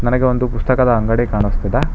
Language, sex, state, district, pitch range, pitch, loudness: Kannada, male, Karnataka, Bangalore, 115-125 Hz, 120 Hz, -16 LUFS